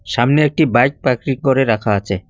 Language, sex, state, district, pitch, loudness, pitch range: Bengali, male, West Bengal, Cooch Behar, 130 Hz, -15 LUFS, 110-140 Hz